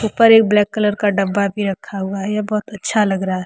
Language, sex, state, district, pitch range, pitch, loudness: Hindi, female, Jharkhand, Deoghar, 195-215 Hz, 205 Hz, -17 LUFS